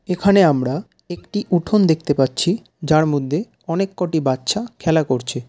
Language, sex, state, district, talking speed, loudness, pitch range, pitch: Bengali, male, West Bengal, Jalpaiguri, 140 wpm, -19 LUFS, 140-190 Hz, 165 Hz